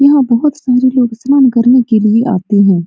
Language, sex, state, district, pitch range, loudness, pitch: Hindi, female, Bihar, Supaul, 220-260 Hz, -10 LUFS, 245 Hz